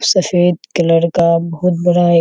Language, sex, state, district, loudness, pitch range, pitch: Hindi, female, Bihar, Kishanganj, -14 LUFS, 170-180 Hz, 170 Hz